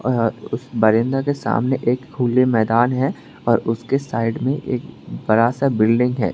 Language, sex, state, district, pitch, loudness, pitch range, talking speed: Hindi, male, Tripura, West Tripura, 125 Hz, -19 LUFS, 115-130 Hz, 160 wpm